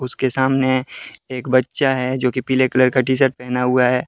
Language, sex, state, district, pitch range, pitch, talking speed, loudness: Hindi, male, Jharkhand, Deoghar, 125-130 Hz, 130 Hz, 205 wpm, -18 LUFS